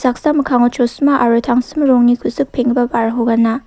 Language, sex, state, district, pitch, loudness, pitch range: Garo, female, Meghalaya, South Garo Hills, 245 Hz, -14 LUFS, 235-265 Hz